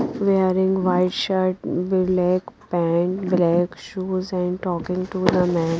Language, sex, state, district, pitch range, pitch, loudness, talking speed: English, female, Punjab, Pathankot, 180-185 Hz, 185 Hz, -21 LUFS, 125 wpm